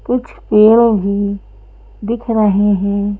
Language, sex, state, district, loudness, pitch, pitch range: Hindi, female, Madhya Pradesh, Bhopal, -14 LUFS, 205 Hz, 200-225 Hz